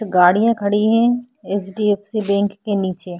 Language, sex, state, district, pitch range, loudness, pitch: Hindi, female, Maharashtra, Chandrapur, 195-220 Hz, -18 LUFS, 205 Hz